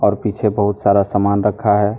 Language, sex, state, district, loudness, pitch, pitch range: Hindi, male, Jharkhand, Deoghar, -16 LUFS, 105 Hz, 100-105 Hz